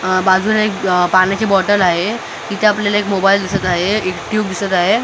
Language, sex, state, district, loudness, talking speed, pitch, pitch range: Marathi, male, Maharashtra, Mumbai Suburban, -15 LUFS, 215 wpm, 195 Hz, 185-210 Hz